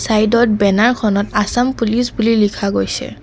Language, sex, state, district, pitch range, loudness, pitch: Assamese, female, Assam, Kamrup Metropolitan, 205-235 Hz, -15 LUFS, 215 Hz